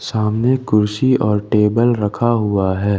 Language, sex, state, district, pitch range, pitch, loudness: Hindi, male, Jharkhand, Ranchi, 105-120 Hz, 105 Hz, -16 LUFS